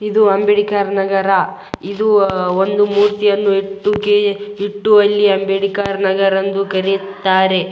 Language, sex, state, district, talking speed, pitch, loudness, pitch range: Kannada, male, Karnataka, Raichur, 110 wpm, 200 Hz, -15 LUFS, 195-205 Hz